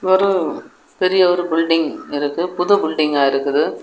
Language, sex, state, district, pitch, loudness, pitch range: Tamil, female, Tamil Nadu, Kanyakumari, 165 Hz, -17 LUFS, 150-185 Hz